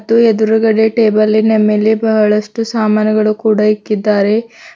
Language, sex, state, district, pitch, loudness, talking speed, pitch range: Kannada, female, Karnataka, Bidar, 220 Hz, -12 LUFS, 90 wpm, 215-225 Hz